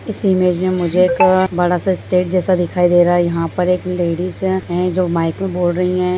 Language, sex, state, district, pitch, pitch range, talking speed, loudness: Hindi, female, Bihar, Bhagalpur, 180 Hz, 175-185 Hz, 235 wpm, -16 LUFS